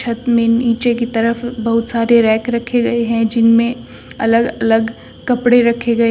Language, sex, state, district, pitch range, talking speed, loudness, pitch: Hindi, female, Uttar Pradesh, Shamli, 230-240 Hz, 155 wpm, -15 LUFS, 235 Hz